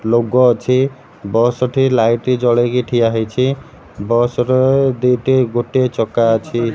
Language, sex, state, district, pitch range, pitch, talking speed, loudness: Odia, male, Odisha, Malkangiri, 115-130 Hz, 125 Hz, 125 wpm, -15 LUFS